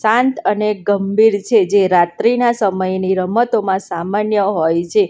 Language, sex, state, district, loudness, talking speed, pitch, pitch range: Gujarati, female, Gujarat, Valsad, -15 LUFS, 130 wpm, 200 Hz, 190-220 Hz